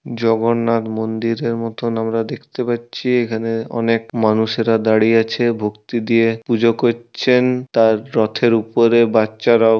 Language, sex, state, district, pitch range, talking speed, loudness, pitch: Bengali, male, West Bengal, Purulia, 110-120 Hz, 115 wpm, -17 LUFS, 115 Hz